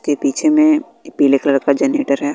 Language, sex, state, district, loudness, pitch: Hindi, female, Bihar, West Champaran, -15 LUFS, 150 Hz